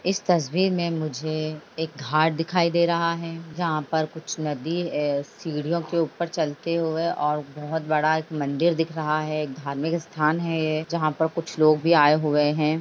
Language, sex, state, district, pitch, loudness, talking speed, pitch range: Hindi, female, Chhattisgarh, Raigarh, 160 Hz, -24 LUFS, 180 wpm, 150-170 Hz